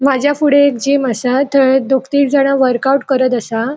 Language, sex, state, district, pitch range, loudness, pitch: Konkani, female, Goa, North and South Goa, 260-280 Hz, -13 LUFS, 270 Hz